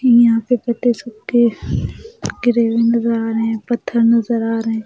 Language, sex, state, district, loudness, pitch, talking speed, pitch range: Hindi, female, Maharashtra, Mumbai Suburban, -17 LUFS, 235 Hz, 185 wpm, 225-240 Hz